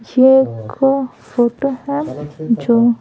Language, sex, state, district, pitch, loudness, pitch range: Hindi, female, Bihar, Patna, 240 Hz, -16 LUFS, 225-270 Hz